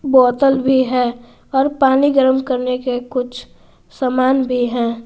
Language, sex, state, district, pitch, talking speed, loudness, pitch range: Hindi, female, Jharkhand, Garhwa, 255 Hz, 140 wpm, -16 LUFS, 250-265 Hz